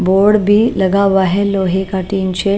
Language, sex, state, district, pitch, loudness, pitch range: Hindi, female, Maharashtra, Mumbai Suburban, 195 Hz, -13 LUFS, 190-200 Hz